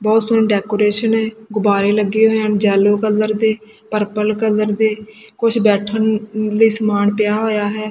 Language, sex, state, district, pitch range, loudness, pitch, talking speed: Punjabi, female, Punjab, Kapurthala, 210-220 Hz, -16 LUFS, 215 Hz, 160 wpm